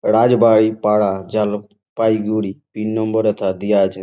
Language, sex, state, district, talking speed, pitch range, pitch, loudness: Bengali, male, West Bengal, Jalpaiguri, 120 wpm, 100-110 Hz, 105 Hz, -17 LUFS